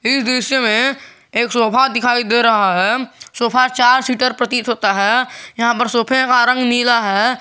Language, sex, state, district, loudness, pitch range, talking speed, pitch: Hindi, male, Jharkhand, Garhwa, -15 LUFS, 230-255 Hz, 180 wpm, 245 Hz